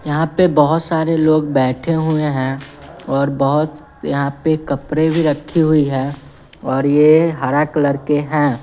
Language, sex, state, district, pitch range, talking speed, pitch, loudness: Hindi, female, Bihar, West Champaran, 140-155 Hz, 160 wpm, 150 Hz, -16 LUFS